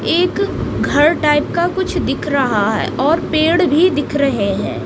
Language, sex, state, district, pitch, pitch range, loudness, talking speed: Hindi, female, Odisha, Nuapada, 320 Hz, 295-355 Hz, -15 LUFS, 175 wpm